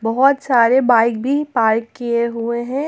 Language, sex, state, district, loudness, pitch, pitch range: Hindi, female, Jharkhand, Ranchi, -16 LUFS, 235 Hz, 230-265 Hz